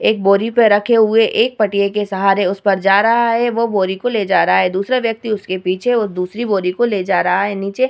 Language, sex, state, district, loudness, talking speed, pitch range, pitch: Hindi, female, Bihar, Vaishali, -15 LUFS, 265 wpm, 195-230 Hz, 205 Hz